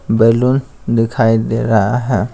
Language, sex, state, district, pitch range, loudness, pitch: Hindi, male, Bihar, Patna, 110-125 Hz, -14 LUFS, 115 Hz